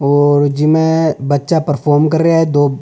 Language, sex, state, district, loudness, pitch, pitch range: Rajasthani, male, Rajasthan, Nagaur, -13 LUFS, 145 Hz, 145-160 Hz